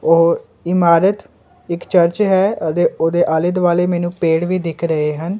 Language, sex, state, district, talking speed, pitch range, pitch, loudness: Punjabi, male, Punjab, Kapurthala, 165 wpm, 165-180 Hz, 175 Hz, -16 LUFS